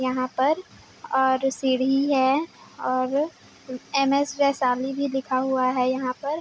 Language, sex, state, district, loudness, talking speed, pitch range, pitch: Hindi, female, Chhattisgarh, Bilaspur, -24 LUFS, 140 wpm, 255-280 Hz, 265 Hz